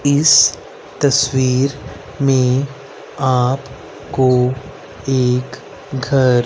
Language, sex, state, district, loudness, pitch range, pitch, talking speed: Hindi, male, Haryana, Rohtak, -15 LUFS, 130-140 Hz, 135 Hz, 65 wpm